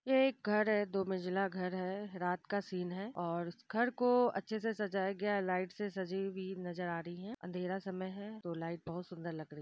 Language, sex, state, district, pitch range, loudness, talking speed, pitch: Hindi, female, Bihar, Gopalganj, 180-210 Hz, -37 LUFS, 245 wpm, 190 Hz